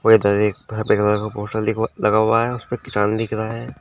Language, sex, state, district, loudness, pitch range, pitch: Hindi, male, Uttar Pradesh, Shamli, -20 LUFS, 105-115 Hz, 110 Hz